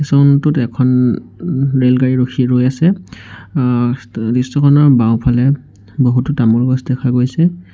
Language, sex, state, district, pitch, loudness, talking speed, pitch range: Assamese, male, Assam, Sonitpur, 125 Hz, -14 LUFS, 125 wpm, 120-140 Hz